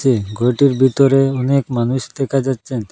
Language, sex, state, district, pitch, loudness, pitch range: Bengali, male, Assam, Hailakandi, 130 Hz, -16 LUFS, 120-135 Hz